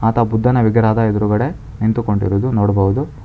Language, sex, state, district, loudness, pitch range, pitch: Kannada, male, Karnataka, Bangalore, -16 LUFS, 105-120 Hz, 110 Hz